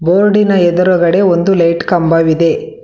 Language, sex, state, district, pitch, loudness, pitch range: Kannada, female, Karnataka, Bangalore, 180 Hz, -11 LUFS, 170-195 Hz